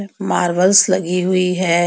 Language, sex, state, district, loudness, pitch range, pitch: Hindi, female, Jharkhand, Ranchi, -15 LUFS, 180-190 Hz, 185 Hz